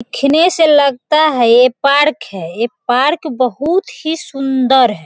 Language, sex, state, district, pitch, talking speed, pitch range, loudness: Hindi, female, Bihar, Sitamarhi, 280 Hz, 130 wpm, 245-310 Hz, -13 LUFS